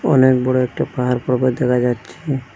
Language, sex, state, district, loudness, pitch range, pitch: Bengali, male, Assam, Hailakandi, -18 LUFS, 125-130 Hz, 125 Hz